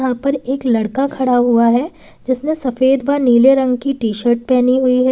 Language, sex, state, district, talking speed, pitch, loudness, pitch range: Hindi, female, Uttar Pradesh, Lalitpur, 200 wpm, 255 Hz, -15 LUFS, 245-270 Hz